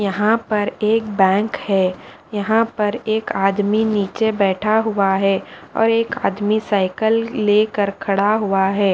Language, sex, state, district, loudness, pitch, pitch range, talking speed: Hindi, female, Punjab, Fazilka, -18 LUFS, 210 Hz, 195-220 Hz, 140 wpm